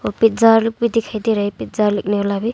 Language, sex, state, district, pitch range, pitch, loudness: Hindi, female, Arunachal Pradesh, Longding, 205-225 Hz, 220 Hz, -17 LUFS